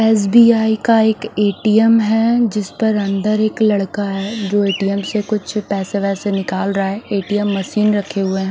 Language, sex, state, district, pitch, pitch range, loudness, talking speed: Hindi, male, Punjab, Fazilka, 205 Hz, 200-220 Hz, -16 LUFS, 190 wpm